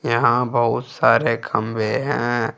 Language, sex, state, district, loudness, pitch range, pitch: Hindi, male, Jharkhand, Ranchi, -19 LUFS, 115-120 Hz, 115 Hz